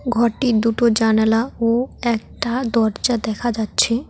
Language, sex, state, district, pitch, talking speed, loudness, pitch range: Bengali, female, West Bengal, Cooch Behar, 235 Hz, 115 wpm, -19 LUFS, 225-240 Hz